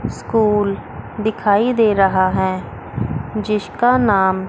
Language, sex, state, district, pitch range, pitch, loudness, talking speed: Hindi, female, Chandigarh, Chandigarh, 190-220 Hz, 210 Hz, -17 LUFS, 95 wpm